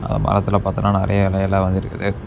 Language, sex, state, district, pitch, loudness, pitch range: Tamil, male, Tamil Nadu, Namakkal, 100 Hz, -19 LUFS, 95-100 Hz